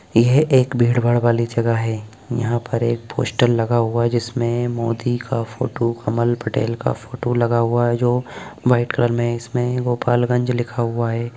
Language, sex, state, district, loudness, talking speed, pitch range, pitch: Hindi, male, Bihar, Gopalganj, -19 LUFS, 175 wpm, 115-120 Hz, 120 Hz